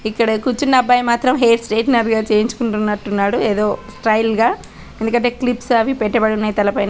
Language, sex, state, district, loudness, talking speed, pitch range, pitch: Telugu, female, Andhra Pradesh, Chittoor, -16 LUFS, 155 wpm, 215-240 Hz, 225 Hz